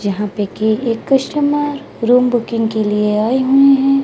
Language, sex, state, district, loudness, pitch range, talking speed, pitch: Hindi, female, Odisha, Malkangiri, -15 LUFS, 215-275 Hz, 180 wpm, 240 Hz